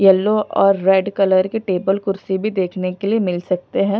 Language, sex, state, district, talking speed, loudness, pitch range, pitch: Hindi, female, Punjab, Pathankot, 210 wpm, -18 LUFS, 185-200 Hz, 195 Hz